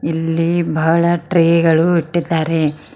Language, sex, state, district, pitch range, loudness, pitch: Kannada, female, Karnataka, Koppal, 160-170 Hz, -15 LUFS, 165 Hz